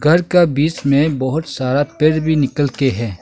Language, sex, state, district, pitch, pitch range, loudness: Hindi, male, Arunachal Pradesh, Longding, 145 Hz, 135-160 Hz, -16 LUFS